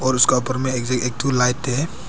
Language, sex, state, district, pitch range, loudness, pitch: Hindi, male, Arunachal Pradesh, Papum Pare, 125-130 Hz, -19 LUFS, 130 Hz